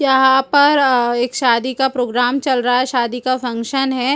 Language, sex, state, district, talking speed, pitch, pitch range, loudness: Hindi, female, Chhattisgarh, Rajnandgaon, 185 wpm, 255 Hz, 245-270 Hz, -16 LUFS